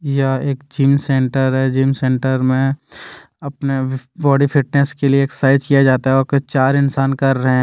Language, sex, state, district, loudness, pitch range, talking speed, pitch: Hindi, male, Jharkhand, Deoghar, -16 LUFS, 130-140 Hz, 190 wpm, 135 Hz